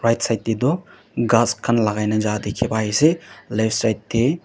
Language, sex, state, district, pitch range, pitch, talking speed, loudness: Nagamese, male, Nagaland, Dimapur, 110-120 Hz, 115 Hz, 200 wpm, -20 LUFS